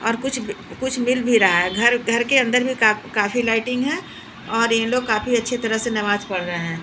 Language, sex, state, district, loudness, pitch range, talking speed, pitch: Hindi, female, Bihar, Patna, -19 LUFS, 215-245 Hz, 235 wpm, 230 Hz